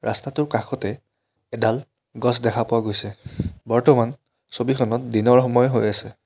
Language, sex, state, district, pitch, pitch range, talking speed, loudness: Assamese, male, Assam, Kamrup Metropolitan, 115 Hz, 110-125 Hz, 125 wpm, -21 LUFS